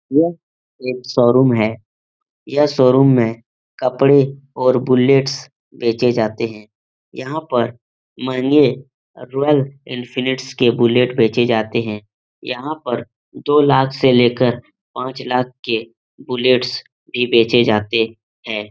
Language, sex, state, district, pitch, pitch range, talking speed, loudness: Hindi, male, Bihar, Supaul, 125 Hz, 115-130 Hz, 120 wpm, -17 LUFS